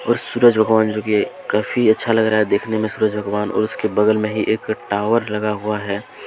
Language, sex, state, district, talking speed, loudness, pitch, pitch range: Hindi, male, Jharkhand, Deoghar, 220 wpm, -18 LUFS, 110 Hz, 105-110 Hz